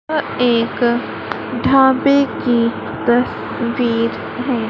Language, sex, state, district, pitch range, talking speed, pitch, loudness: Hindi, female, Madhya Pradesh, Dhar, 235-265 Hz, 75 wpm, 245 Hz, -17 LUFS